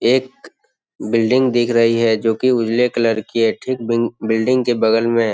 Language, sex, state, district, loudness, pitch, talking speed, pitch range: Hindi, male, Bihar, Jamui, -17 LUFS, 115 Hz, 200 wpm, 115-125 Hz